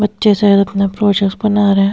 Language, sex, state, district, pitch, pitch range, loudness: Hindi, female, Uttar Pradesh, Hamirpur, 200 Hz, 200-210 Hz, -13 LUFS